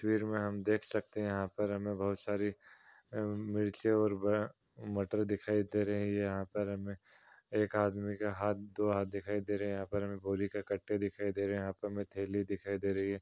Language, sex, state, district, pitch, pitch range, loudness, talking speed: Hindi, male, Uttar Pradesh, Muzaffarnagar, 100 Hz, 100-105 Hz, -36 LUFS, 220 wpm